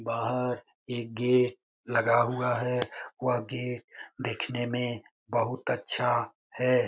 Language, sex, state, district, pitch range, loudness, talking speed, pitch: Hindi, male, Bihar, Jamui, 120-125 Hz, -29 LUFS, 130 wpm, 125 Hz